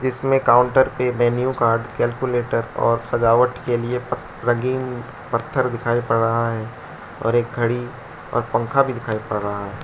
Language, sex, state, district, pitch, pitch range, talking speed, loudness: Hindi, male, Arunachal Pradesh, Lower Dibang Valley, 120 Hz, 115-125 Hz, 165 wpm, -20 LUFS